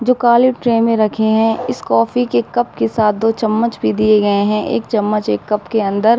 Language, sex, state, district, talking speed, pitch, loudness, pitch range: Hindi, female, Uttar Pradesh, Budaun, 240 wpm, 220 Hz, -15 LUFS, 200-230 Hz